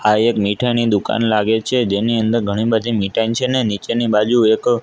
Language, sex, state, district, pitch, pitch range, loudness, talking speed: Gujarati, male, Gujarat, Gandhinagar, 115 Hz, 105-120 Hz, -17 LUFS, 200 wpm